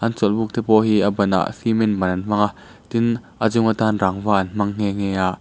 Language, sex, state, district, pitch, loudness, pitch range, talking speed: Mizo, male, Mizoram, Aizawl, 105 Hz, -20 LUFS, 100-110 Hz, 265 wpm